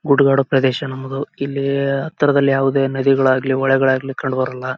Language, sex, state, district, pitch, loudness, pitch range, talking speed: Kannada, male, Karnataka, Bellary, 135 Hz, -17 LUFS, 130-140 Hz, 140 wpm